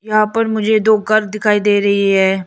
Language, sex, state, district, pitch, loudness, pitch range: Hindi, female, Arunachal Pradesh, Lower Dibang Valley, 215 Hz, -14 LUFS, 200-215 Hz